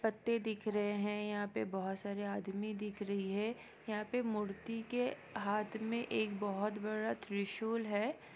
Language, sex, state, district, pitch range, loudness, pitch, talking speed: Hindi, female, Bihar, East Champaran, 205-220 Hz, -39 LUFS, 210 Hz, 165 wpm